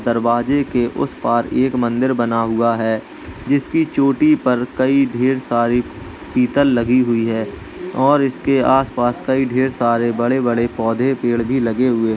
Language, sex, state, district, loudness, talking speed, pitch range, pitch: Hindi, male, Uttar Pradesh, Jalaun, -17 LUFS, 160 wpm, 120-135 Hz, 125 Hz